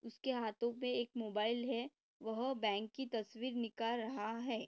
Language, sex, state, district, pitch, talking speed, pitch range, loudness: Hindi, female, Maharashtra, Dhule, 235 Hz, 165 wpm, 225-250 Hz, -41 LUFS